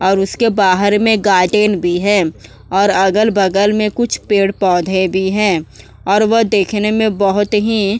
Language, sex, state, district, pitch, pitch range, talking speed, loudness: Hindi, female, Uttar Pradesh, Budaun, 200 Hz, 190-210 Hz, 165 wpm, -14 LUFS